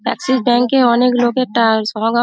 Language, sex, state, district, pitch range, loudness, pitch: Bengali, female, West Bengal, Dakshin Dinajpur, 230-255 Hz, -14 LUFS, 240 Hz